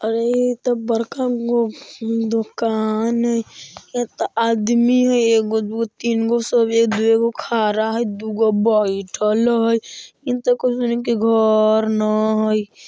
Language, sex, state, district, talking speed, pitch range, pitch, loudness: Bajjika, female, Bihar, Vaishali, 110 wpm, 220-235 Hz, 230 Hz, -18 LUFS